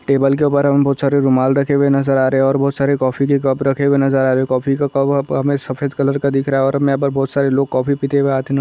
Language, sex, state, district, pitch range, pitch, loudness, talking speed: Hindi, male, Chhattisgarh, Sarguja, 135-140 Hz, 140 Hz, -16 LUFS, 320 wpm